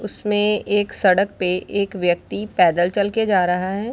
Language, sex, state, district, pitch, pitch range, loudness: Hindi, female, Bihar, Sitamarhi, 200 Hz, 180-205 Hz, -19 LUFS